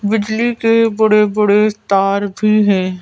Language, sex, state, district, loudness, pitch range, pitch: Hindi, female, Madhya Pradesh, Bhopal, -14 LUFS, 200-220 Hz, 210 Hz